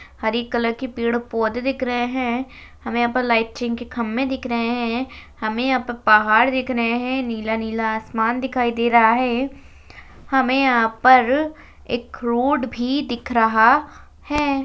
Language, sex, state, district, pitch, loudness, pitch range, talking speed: Hindi, female, Rajasthan, Nagaur, 240 Hz, -20 LUFS, 230-260 Hz, 160 wpm